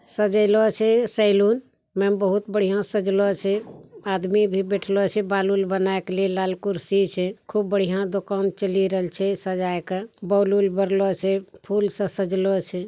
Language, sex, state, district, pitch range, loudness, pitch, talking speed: Angika, male, Bihar, Bhagalpur, 190-205 Hz, -22 LUFS, 195 Hz, 155 wpm